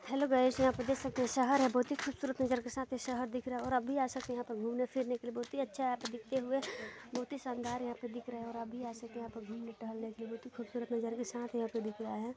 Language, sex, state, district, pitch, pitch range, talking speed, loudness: Hindi, female, Chhattisgarh, Balrampur, 245 Hz, 235-260 Hz, 345 wpm, -37 LUFS